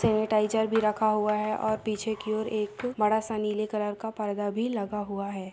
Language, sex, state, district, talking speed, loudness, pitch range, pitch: Hindi, female, Jharkhand, Sahebganj, 215 wpm, -28 LUFS, 210-220 Hz, 215 Hz